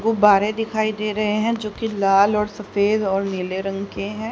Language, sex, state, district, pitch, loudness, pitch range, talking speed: Hindi, female, Haryana, Rohtak, 210 Hz, -20 LUFS, 200-215 Hz, 210 wpm